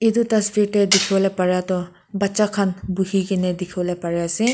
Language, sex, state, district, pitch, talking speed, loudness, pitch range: Nagamese, female, Nagaland, Kohima, 195 Hz, 160 wpm, -20 LUFS, 180-205 Hz